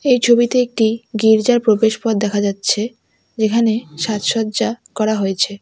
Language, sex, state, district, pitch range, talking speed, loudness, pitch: Bengali, female, West Bengal, Alipurduar, 215-230 Hz, 115 wpm, -16 LUFS, 220 Hz